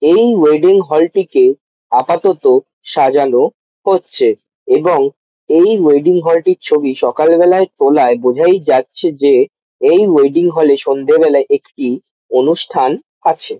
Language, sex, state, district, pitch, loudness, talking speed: Bengali, male, West Bengal, Jalpaiguri, 195 Hz, -12 LUFS, 115 wpm